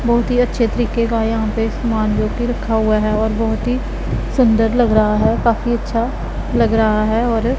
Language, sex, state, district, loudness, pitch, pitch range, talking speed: Hindi, female, Punjab, Pathankot, -17 LUFS, 225 Hz, 220-240 Hz, 215 wpm